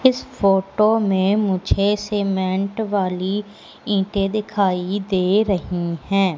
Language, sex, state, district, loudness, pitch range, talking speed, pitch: Hindi, female, Madhya Pradesh, Katni, -20 LUFS, 190-205 Hz, 105 wpm, 195 Hz